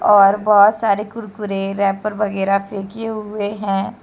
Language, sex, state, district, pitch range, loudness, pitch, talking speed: Hindi, female, Jharkhand, Deoghar, 195-215 Hz, -17 LUFS, 205 Hz, 135 wpm